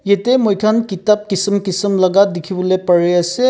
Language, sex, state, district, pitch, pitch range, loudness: Nagamese, male, Nagaland, Kohima, 195 Hz, 185-210 Hz, -15 LUFS